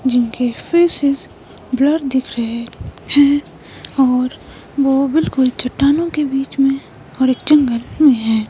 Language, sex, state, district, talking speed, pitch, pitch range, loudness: Hindi, female, Himachal Pradesh, Shimla, 125 wpm, 270 Hz, 250-285 Hz, -16 LUFS